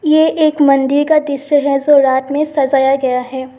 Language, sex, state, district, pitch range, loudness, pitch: Hindi, female, Assam, Sonitpur, 270-300 Hz, -13 LUFS, 280 Hz